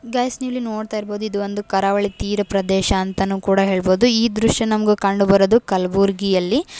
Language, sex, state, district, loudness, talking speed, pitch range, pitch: Kannada, female, Karnataka, Gulbarga, -18 LUFS, 160 wpm, 195-225 Hz, 205 Hz